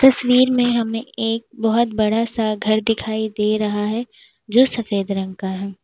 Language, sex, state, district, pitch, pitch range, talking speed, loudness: Hindi, female, Uttar Pradesh, Lalitpur, 225 Hz, 210-235 Hz, 175 wpm, -19 LUFS